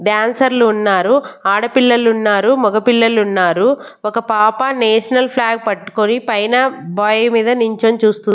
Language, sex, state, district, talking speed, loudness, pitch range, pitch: Telugu, female, Andhra Pradesh, Annamaya, 120 wpm, -14 LUFS, 210-245 Hz, 225 Hz